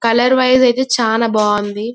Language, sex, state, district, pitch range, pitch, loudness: Telugu, male, Telangana, Karimnagar, 220-255 Hz, 230 Hz, -14 LUFS